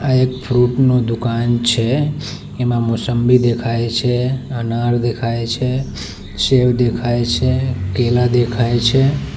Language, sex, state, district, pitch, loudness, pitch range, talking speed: Gujarati, male, Gujarat, Valsad, 120 Hz, -16 LUFS, 120-130 Hz, 120 wpm